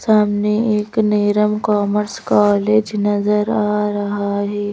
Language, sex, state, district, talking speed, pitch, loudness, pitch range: Hindi, female, Madhya Pradesh, Bhopal, 115 wpm, 210 Hz, -17 LUFS, 205-210 Hz